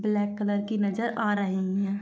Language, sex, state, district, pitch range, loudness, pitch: Hindi, female, Uttar Pradesh, Jyotiba Phule Nagar, 200-210 Hz, -27 LUFS, 205 Hz